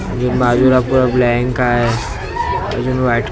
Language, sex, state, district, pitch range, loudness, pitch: Marathi, male, Maharashtra, Mumbai Suburban, 120-130 Hz, -15 LUFS, 125 Hz